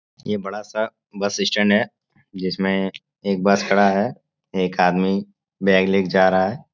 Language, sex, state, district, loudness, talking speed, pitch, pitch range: Hindi, male, Bihar, Supaul, -20 LUFS, 170 wpm, 100 Hz, 95-105 Hz